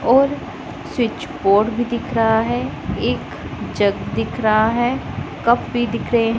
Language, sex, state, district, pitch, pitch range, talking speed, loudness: Hindi, female, Punjab, Pathankot, 235 Hz, 220-240 Hz, 150 wpm, -19 LUFS